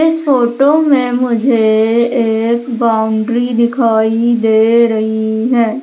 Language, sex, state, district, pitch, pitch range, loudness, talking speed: Hindi, female, Madhya Pradesh, Umaria, 235 Hz, 220-245 Hz, -12 LUFS, 105 wpm